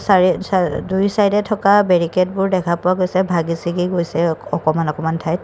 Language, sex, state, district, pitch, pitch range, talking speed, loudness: Assamese, female, Assam, Kamrup Metropolitan, 180 Hz, 170-190 Hz, 130 wpm, -17 LUFS